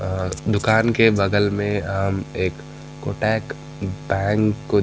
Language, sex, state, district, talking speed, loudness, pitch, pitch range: Hindi, male, Bihar, Gaya, 135 wpm, -21 LUFS, 100 Hz, 95-110 Hz